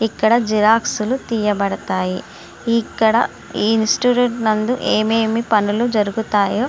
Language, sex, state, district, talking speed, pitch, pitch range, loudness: Telugu, female, Andhra Pradesh, Srikakulam, 100 wpm, 220 Hz, 210-230 Hz, -17 LUFS